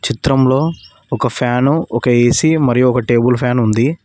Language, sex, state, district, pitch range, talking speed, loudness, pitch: Telugu, male, Telangana, Mahabubabad, 120-140 Hz, 150 wpm, -14 LUFS, 125 Hz